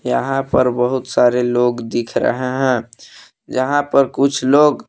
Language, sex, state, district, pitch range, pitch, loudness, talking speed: Hindi, male, Jharkhand, Palamu, 125-135 Hz, 130 Hz, -17 LUFS, 145 wpm